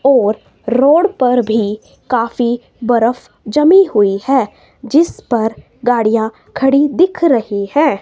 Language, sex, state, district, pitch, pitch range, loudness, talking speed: Hindi, female, Himachal Pradesh, Shimla, 245 Hz, 225-285 Hz, -14 LUFS, 120 wpm